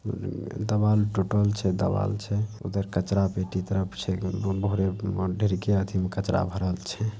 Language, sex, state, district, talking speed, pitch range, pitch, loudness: Maithili, male, Bihar, Saharsa, 135 wpm, 95-105 Hz, 100 Hz, -27 LUFS